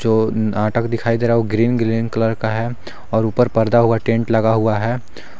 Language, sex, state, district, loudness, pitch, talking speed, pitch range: Hindi, male, Jharkhand, Garhwa, -17 LUFS, 115 Hz, 210 wpm, 110-115 Hz